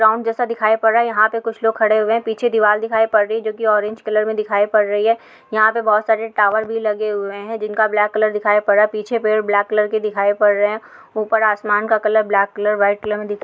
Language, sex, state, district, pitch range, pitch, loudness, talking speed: Hindi, female, Uttar Pradesh, Hamirpur, 210-220 Hz, 215 Hz, -17 LUFS, 280 wpm